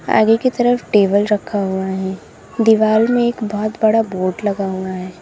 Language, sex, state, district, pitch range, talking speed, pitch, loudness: Hindi, female, Uttar Pradesh, Lalitpur, 190-225 Hz, 170 wpm, 210 Hz, -16 LUFS